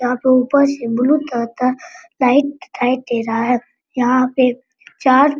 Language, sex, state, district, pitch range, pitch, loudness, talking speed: Hindi, female, Bihar, Araria, 245-285 Hz, 255 Hz, -16 LUFS, 165 wpm